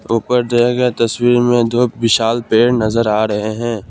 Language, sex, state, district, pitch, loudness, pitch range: Hindi, male, Assam, Kamrup Metropolitan, 120 Hz, -14 LUFS, 115-120 Hz